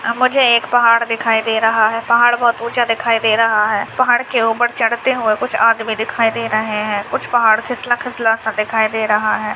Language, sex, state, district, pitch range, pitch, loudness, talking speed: Hindi, female, Bihar, Madhepura, 220-240 Hz, 230 Hz, -15 LUFS, 205 wpm